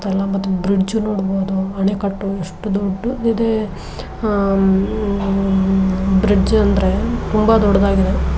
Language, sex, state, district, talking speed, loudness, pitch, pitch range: Kannada, female, Karnataka, Dharwad, 100 wpm, -17 LUFS, 195 Hz, 190-210 Hz